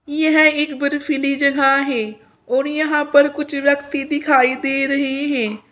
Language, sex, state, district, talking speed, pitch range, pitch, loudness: Hindi, female, Uttar Pradesh, Saharanpur, 145 wpm, 270-295 Hz, 280 Hz, -17 LUFS